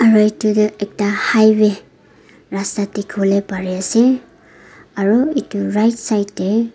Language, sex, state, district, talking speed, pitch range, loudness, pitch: Nagamese, female, Nagaland, Dimapur, 115 wpm, 200-225 Hz, -16 LUFS, 210 Hz